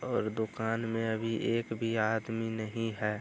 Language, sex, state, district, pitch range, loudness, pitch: Hindi, male, Bihar, Araria, 110-115 Hz, -33 LUFS, 115 Hz